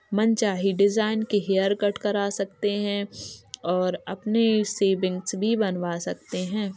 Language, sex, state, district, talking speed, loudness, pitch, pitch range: Hindi, male, Uttar Pradesh, Jalaun, 125 wpm, -25 LUFS, 200 Hz, 190-210 Hz